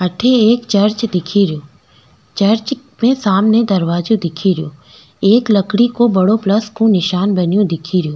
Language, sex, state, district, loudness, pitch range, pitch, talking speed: Rajasthani, female, Rajasthan, Nagaur, -14 LUFS, 180-225 Hz, 200 Hz, 155 wpm